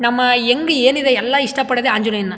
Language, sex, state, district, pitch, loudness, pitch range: Kannada, male, Karnataka, Chamarajanagar, 250 Hz, -15 LUFS, 240-265 Hz